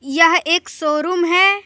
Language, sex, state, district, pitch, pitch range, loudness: Hindi, female, Jharkhand, Deoghar, 345 Hz, 320-360 Hz, -15 LUFS